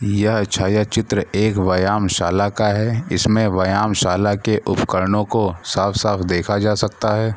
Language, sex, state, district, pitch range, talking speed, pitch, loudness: Hindi, male, Bihar, Gaya, 95-110 Hz, 155 wpm, 105 Hz, -18 LUFS